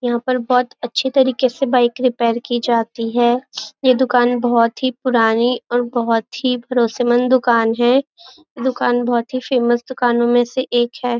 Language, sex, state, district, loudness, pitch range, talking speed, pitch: Hindi, female, Maharashtra, Nagpur, -17 LUFS, 240-255 Hz, 165 wpm, 245 Hz